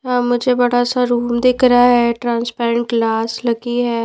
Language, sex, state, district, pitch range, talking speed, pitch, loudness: Hindi, female, Punjab, Pathankot, 235-245 Hz, 175 wpm, 240 Hz, -16 LUFS